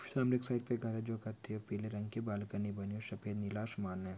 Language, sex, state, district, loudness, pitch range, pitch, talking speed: Hindi, male, Chhattisgarh, Korba, -40 LUFS, 105-115 Hz, 105 Hz, 285 wpm